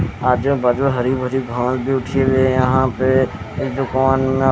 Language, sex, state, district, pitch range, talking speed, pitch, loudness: Hindi, male, Chandigarh, Chandigarh, 125-135 Hz, 185 wpm, 130 Hz, -17 LUFS